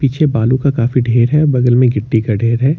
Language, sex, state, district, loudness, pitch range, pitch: Hindi, male, Jharkhand, Ranchi, -13 LUFS, 115-140 Hz, 125 Hz